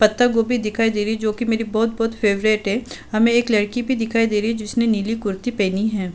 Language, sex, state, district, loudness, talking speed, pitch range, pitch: Hindi, female, Uttar Pradesh, Budaun, -20 LUFS, 235 wpm, 210-230 Hz, 225 Hz